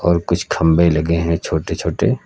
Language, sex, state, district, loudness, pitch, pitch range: Hindi, male, Uttar Pradesh, Lucknow, -17 LUFS, 85 Hz, 80-85 Hz